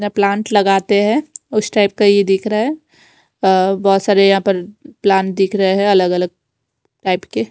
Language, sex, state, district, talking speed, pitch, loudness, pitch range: Hindi, female, Punjab, Fazilka, 185 wpm, 195 Hz, -15 LUFS, 190-205 Hz